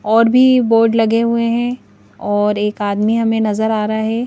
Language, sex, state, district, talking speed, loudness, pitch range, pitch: Hindi, female, Madhya Pradesh, Bhopal, 195 wpm, -15 LUFS, 215-230 Hz, 225 Hz